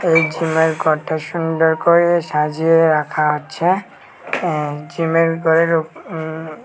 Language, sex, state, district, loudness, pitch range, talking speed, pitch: Bengali, male, Tripura, West Tripura, -17 LUFS, 155-165 Hz, 115 wpm, 160 Hz